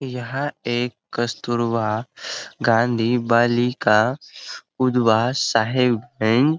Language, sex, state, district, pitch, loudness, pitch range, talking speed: Hindi, male, Jharkhand, Sahebganj, 120 Hz, -21 LUFS, 115-125 Hz, 75 wpm